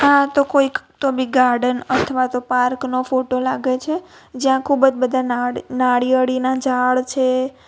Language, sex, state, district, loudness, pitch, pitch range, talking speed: Gujarati, female, Gujarat, Valsad, -18 LUFS, 255 Hz, 255-270 Hz, 165 wpm